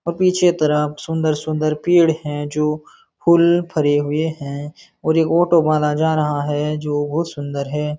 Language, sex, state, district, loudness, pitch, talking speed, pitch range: Hindi, male, Uttar Pradesh, Jalaun, -18 LUFS, 155 Hz, 180 wpm, 150-165 Hz